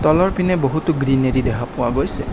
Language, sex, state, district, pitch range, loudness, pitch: Assamese, male, Assam, Kamrup Metropolitan, 130-165 Hz, -17 LUFS, 135 Hz